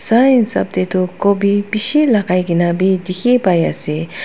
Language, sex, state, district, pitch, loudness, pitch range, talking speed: Nagamese, female, Nagaland, Dimapur, 190 Hz, -14 LUFS, 180-225 Hz, 170 wpm